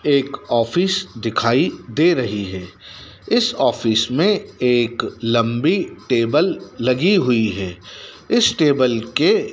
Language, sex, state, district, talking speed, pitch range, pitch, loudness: Hindi, male, Madhya Pradesh, Dhar, 115 wpm, 115-165 Hz, 120 Hz, -18 LUFS